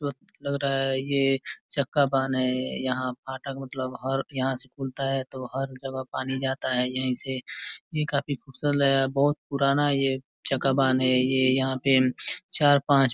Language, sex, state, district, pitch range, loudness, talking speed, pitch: Hindi, male, Uttar Pradesh, Ghazipur, 130-140 Hz, -24 LUFS, 185 wpm, 135 Hz